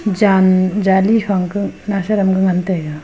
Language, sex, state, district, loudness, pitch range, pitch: Wancho, female, Arunachal Pradesh, Longding, -15 LUFS, 185-205 Hz, 190 Hz